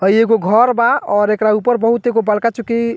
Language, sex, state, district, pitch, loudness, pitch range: Bhojpuri, male, Bihar, Muzaffarpur, 230 Hz, -14 LUFS, 215-235 Hz